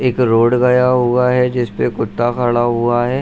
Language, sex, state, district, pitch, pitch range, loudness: Hindi, male, Bihar, Saharsa, 125 Hz, 120-125 Hz, -15 LUFS